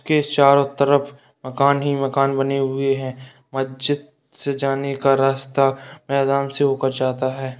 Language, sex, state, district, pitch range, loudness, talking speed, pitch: Hindi, male, Bihar, Purnia, 135-140 Hz, -20 LUFS, 160 wpm, 135 Hz